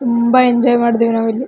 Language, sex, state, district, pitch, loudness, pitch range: Kannada, female, Karnataka, Raichur, 235 Hz, -13 LUFS, 230-250 Hz